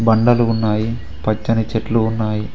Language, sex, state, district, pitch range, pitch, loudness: Telugu, male, Telangana, Mahabubabad, 110-115 Hz, 110 Hz, -18 LUFS